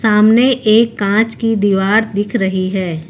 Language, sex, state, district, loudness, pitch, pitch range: Hindi, female, Uttar Pradesh, Lucknow, -14 LUFS, 215 Hz, 195-225 Hz